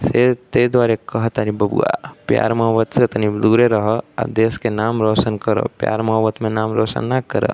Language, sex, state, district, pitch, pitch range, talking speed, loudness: Bhojpuri, male, Uttar Pradesh, Deoria, 110 Hz, 110-120 Hz, 190 wpm, -18 LUFS